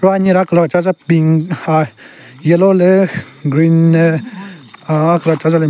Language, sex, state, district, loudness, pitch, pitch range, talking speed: Rengma, male, Nagaland, Kohima, -13 LUFS, 165 Hz, 155-180 Hz, 160 wpm